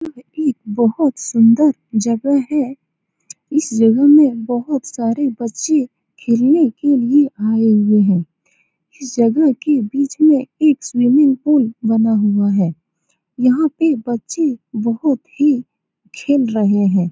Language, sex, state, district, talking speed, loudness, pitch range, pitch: Hindi, female, Bihar, Saran, 130 wpm, -15 LUFS, 225-290 Hz, 250 Hz